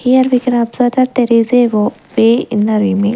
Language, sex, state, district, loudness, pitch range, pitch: English, female, Punjab, Kapurthala, -13 LUFS, 215-250 Hz, 235 Hz